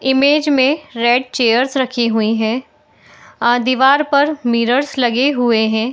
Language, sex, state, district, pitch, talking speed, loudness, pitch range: Hindi, female, Bihar, Madhepura, 255 Hz, 140 wpm, -15 LUFS, 235-275 Hz